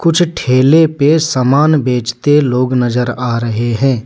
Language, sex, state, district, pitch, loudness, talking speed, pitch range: Hindi, male, Jharkhand, Deoghar, 130 Hz, -12 LUFS, 150 wpm, 125-150 Hz